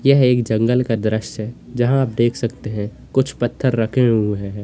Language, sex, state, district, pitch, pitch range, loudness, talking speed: Hindi, male, Uttar Pradesh, Lalitpur, 120 Hz, 110-125 Hz, -19 LUFS, 195 wpm